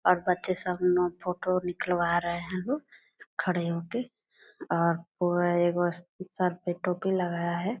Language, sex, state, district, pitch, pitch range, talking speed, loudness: Hindi, female, Bihar, Purnia, 180 Hz, 175-185 Hz, 145 wpm, -29 LUFS